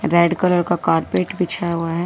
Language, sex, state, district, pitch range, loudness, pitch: Hindi, female, Delhi, New Delhi, 170-180 Hz, -19 LUFS, 175 Hz